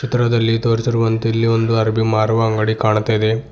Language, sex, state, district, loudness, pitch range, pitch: Kannada, male, Karnataka, Bidar, -17 LUFS, 110-115 Hz, 115 Hz